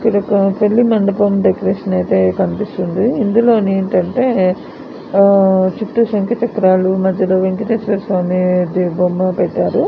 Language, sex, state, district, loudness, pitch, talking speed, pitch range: Telugu, female, Andhra Pradesh, Anantapur, -14 LUFS, 195 Hz, 110 wpm, 185-210 Hz